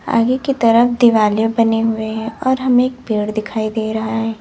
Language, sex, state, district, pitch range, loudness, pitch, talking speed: Hindi, female, Uttar Pradesh, Lalitpur, 220-245 Hz, -16 LUFS, 225 Hz, 205 wpm